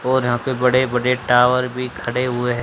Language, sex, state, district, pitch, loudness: Hindi, male, Haryana, Charkhi Dadri, 125 Hz, -18 LUFS